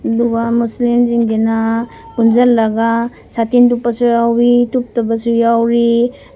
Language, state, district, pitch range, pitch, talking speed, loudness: Manipuri, Manipur, Imphal West, 230-240 Hz, 235 Hz, 75 wpm, -14 LUFS